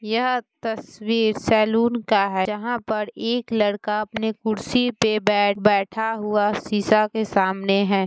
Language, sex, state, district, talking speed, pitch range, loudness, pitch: Hindi, female, Bihar, Muzaffarpur, 140 wpm, 205-225 Hz, -22 LUFS, 215 Hz